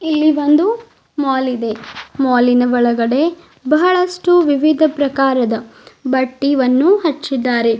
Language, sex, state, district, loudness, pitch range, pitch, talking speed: Kannada, female, Karnataka, Bidar, -15 LUFS, 250-315 Hz, 275 Hz, 85 wpm